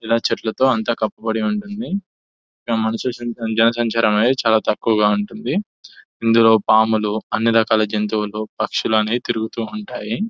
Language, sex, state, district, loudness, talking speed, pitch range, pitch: Telugu, male, Telangana, Nalgonda, -19 LUFS, 120 wpm, 110-120 Hz, 110 Hz